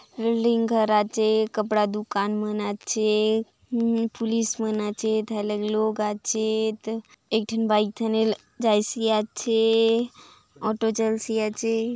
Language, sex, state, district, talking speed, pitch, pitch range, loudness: Halbi, female, Chhattisgarh, Bastar, 115 wpm, 220 Hz, 210-225 Hz, -24 LUFS